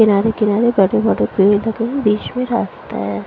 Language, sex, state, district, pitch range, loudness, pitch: Hindi, female, Punjab, Fazilka, 205-230 Hz, -16 LUFS, 220 Hz